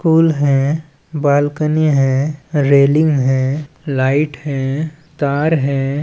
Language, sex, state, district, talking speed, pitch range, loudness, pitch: Chhattisgarhi, male, Chhattisgarh, Balrampur, 100 wpm, 140-155 Hz, -16 LUFS, 145 Hz